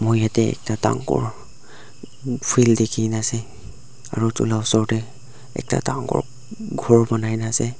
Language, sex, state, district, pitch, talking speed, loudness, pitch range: Nagamese, male, Nagaland, Dimapur, 115 Hz, 145 wpm, -21 LUFS, 110-125 Hz